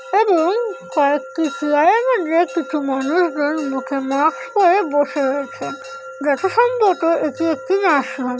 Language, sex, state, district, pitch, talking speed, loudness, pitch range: Bengali, female, West Bengal, Kolkata, 305 Hz, 115 wpm, -18 LUFS, 275-370 Hz